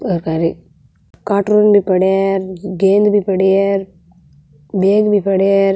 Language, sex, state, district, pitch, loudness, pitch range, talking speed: Marwari, female, Rajasthan, Nagaur, 195 Hz, -14 LUFS, 170-200 Hz, 155 wpm